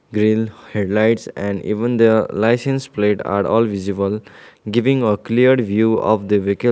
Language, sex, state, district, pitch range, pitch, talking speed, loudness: English, male, Sikkim, Gangtok, 105-115 Hz, 110 Hz, 150 wpm, -17 LUFS